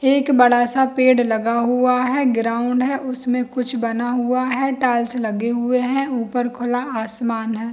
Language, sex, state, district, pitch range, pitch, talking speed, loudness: Hindi, female, Jharkhand, Jamtara, 235-255 Hz, 245 Hz, 165 wpm, -19 LUFS